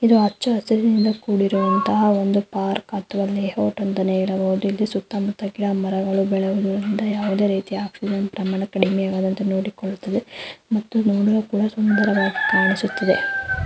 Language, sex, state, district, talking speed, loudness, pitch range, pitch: Kannada, female, Karnataka, Mysore, 70 wpm, -21 LUFS, 195-210 Hz, 200 Hz